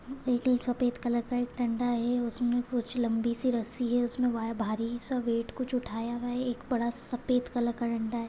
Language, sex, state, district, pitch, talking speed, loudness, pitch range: Hindi, female, Maharashtra, Dhule, 245 Hz, 195 wpm, -31 LUFS, 235-245 Hz